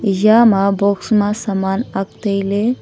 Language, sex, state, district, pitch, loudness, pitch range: Wancho, female, Arunachal Pradesh, Longding, 200 Hz, -15 LUFS, 195-215 Hz